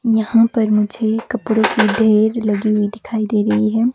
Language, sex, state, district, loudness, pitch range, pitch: Hindi, female, Himachal Pradesh, Shimla, -16 LUFS, 215-225 Hz, 220 Hz